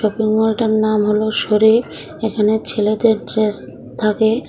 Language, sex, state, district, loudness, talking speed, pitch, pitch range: Bengali, female, Tripura, South Tripura, -16 LUFS, 120 wpm, 215 Hz, 215-220 Hz